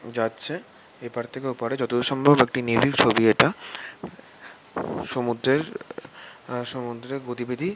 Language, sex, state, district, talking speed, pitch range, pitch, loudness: Bengali, male, West Bengal, Kolkata, 110 wpm, 115-130 Hz, 120 Hz, -24 LUFS